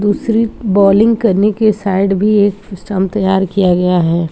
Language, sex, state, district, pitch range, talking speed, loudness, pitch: Hindi, female, Bihar, Purnia, 190-215 Hz, 165 wpm, -13 LUFS, 200 Hz